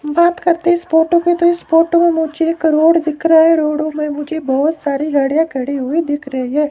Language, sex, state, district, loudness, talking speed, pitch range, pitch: Hindi, male, Himachal Pradesh, Shimla, -14 LUFS, 230 wpm, 295-335 Hz, 320 Hz